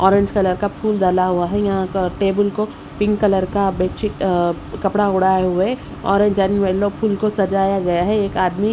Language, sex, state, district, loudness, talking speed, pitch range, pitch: Hindi, female, Odisha, Sambalpur, -18 LUFS, 215 wpm, 185-205 Hz, 195 Hz